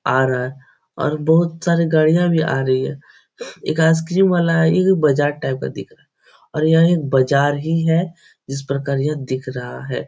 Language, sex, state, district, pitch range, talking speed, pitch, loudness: Hindi, male, Bihar, Supaul, 135-165 Hz, 200 wpm, 155 Hz, -18 LUFS